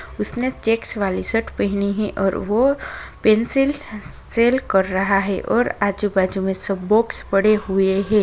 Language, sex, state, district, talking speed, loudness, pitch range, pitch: Bhojpuri, female, Bihar, Saran, 155 wpm, -19 LUFS, 195-225 Hz, 205 Hz